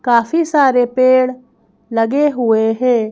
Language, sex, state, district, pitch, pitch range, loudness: Hindi, female, Madhya Pradesh, Bhopal, 250 Hz, 230-260 Hz, -14 LUFS